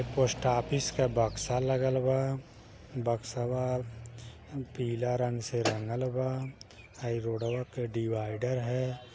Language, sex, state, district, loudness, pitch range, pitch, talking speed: Bhojpuri, male, Uttar Pradesh, Gorakhpur, -32 LUFS, 115-130 Hz, 125 Hz, 125 wpm